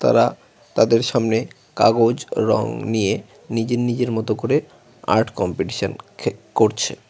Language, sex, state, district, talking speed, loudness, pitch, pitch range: Bengali, male, West Bengal, Cooch Behar, 110 wpm, -20 LUFS, 115 Hz, 115-120 Hz